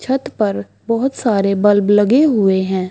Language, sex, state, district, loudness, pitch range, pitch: Hindi, female, Bihar, Bhagalpur, -15 LUFS, 195-240 Hz, 205 Hz